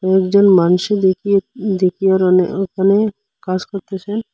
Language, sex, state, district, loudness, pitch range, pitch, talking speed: Bengali, male, Assam, Hailakandi, -15 LUFS, 185-200 Hz, 195 Hz, 85 wpm